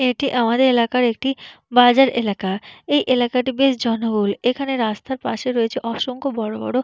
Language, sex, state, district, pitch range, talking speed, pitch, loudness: Bengali, female, West Bengal, Purulia, 230-260 Hz, 160 wpm, 245 Hz, -19 LUFS